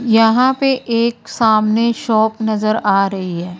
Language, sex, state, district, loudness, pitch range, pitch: Hindi, female, Punjab, Fazilka, -15 LUFS, 215-235 Hz, 225 Hz